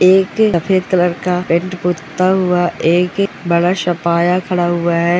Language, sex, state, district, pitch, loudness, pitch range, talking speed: Hindi, female, West Bengal, North 24 Parganas, 180 Hz, -15 LUFS, 170-185 Hz, 160 wpm